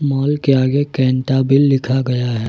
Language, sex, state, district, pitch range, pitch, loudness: Hindi, male, Jharkhand, Ranchi, 130-140 Hz, 135 Hz, -15 LUFS